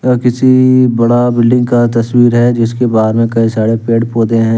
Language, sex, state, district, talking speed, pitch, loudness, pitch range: Hindi, male, Jharkhand, Deoghar, 195 wpm, 120 Hz, -10 LUFS, 115-120 Hz